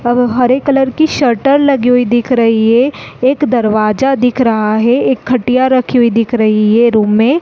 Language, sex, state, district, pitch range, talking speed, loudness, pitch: Hindi, female, Chhattisgarh, Balrampur, 230-265 Hz, 200 wpm, -11 LUFS, 245 Hz